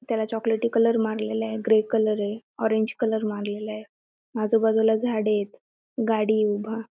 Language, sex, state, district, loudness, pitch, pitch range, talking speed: Marathi, female, Maharashtra, Aurangabad, -24 LUFS, 220 Hz, 215-225 Hz, 155 wpm